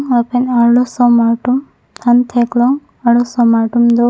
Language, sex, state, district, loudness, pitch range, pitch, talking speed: Karbi, female, Assam, Karbi Anglong, -13 LUFS, 235-250 Hz, 240 Hz, 115 wpm